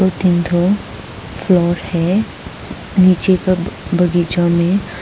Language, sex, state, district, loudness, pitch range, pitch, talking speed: Hindi, female, Arunachal Pradesh, Papum Pare, -15 LUFS, 170-185 Hz, 175 Hz, 110 wpm